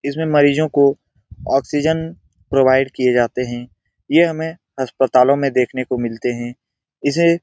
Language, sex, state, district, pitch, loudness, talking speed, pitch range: Hindi, male, Bihar, Saran, 135 Hz, -17 LUFS, 145 wpm, 125-145 Hz